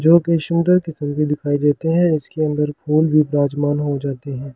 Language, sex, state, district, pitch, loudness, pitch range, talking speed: Hindi, male, Delhi, New Delhi, 150 Hz, -18 LUFS, 145-165 Hz, 225 wpm